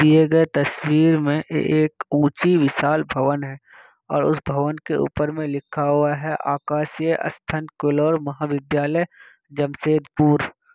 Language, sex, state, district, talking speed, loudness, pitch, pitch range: Hindi, male, Bihar, Kishanganj, 130 wpm, -21 LUFS, 150 Hz, 145-155 Hz